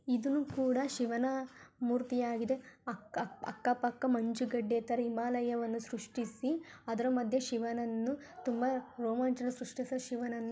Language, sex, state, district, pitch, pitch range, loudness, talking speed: Kannada, female, Karnataka, Gulbarga, 245 Hz, 235-255 Hz, -36 LUFS, 110 wpm